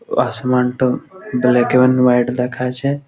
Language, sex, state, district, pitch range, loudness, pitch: Bengali, male, West Bengal, Malda, 125-135 Hz, -16 LUFS, 125 Hz